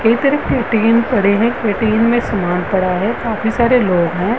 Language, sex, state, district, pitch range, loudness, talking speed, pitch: Hindi, female, Uttar Pradesh, Varanasi, 200-235 Hz, -15 LUFS, 165 wpm, 225 Hz